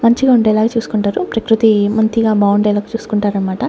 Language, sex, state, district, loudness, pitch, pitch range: Telugu, female, Andhra Pradesh, Sri Satya Sai, -14 LUFS, 220 Hz, 205-225 Hz